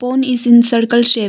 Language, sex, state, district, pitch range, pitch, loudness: English, female, Arunachal Pradesh, Longding, 235-250 Hz, 240 Hz, -11 LUFS